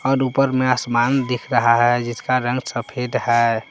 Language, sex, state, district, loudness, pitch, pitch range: Hindi, male, Jharkhand, Palamu, -19 LUFS, 125 Hz, 120-130 Hz